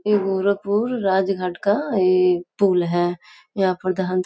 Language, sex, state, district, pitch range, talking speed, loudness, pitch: Hindi, female, Uttar Pradesh, Gorakhpur, 185-200 Hz, 155 wpm, -20 LUFS, 190 Hz